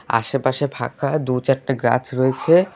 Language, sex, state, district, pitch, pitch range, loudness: Bengali, male, West Bengal, Alipurduar, 135 Hz, 125-145 Hz, -20 LUFS